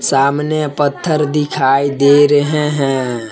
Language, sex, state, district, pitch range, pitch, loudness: Hindi, male, Jharkhand, Palamu, 135-150 Hz, 145 Hz, -14 LUFS